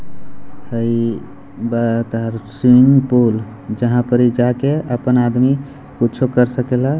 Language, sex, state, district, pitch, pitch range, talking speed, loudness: Hindi, male, Bihar, Gopalganj, 120 Hz, 115-125 Hz, 105 wpm, -16 LUFS